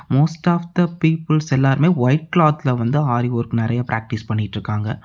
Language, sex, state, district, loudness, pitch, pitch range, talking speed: Tamil, male, Tamil Nadu, Namakkal, -19 LUFS, 135 Hz, 115-160 Hz, 155 wpm